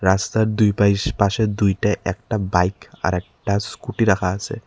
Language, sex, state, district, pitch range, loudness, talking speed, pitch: Bengali, male, Tripura, Unakoti, 95-110 Hz, -20 LUFS, 155 wpm, 100 Hz